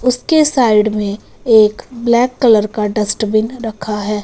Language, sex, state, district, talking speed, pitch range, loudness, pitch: Hindi, female, Punjab, Fazilka, 140 wpm, 210-245 Hz, -14 LUFS, 220 Hz